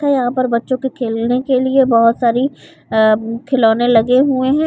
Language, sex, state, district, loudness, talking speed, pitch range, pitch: Hindi, female, Chhattisgarh, Bilaspur, -15 LUFS, 190 wpm, 230-265 Hz, 250 Hz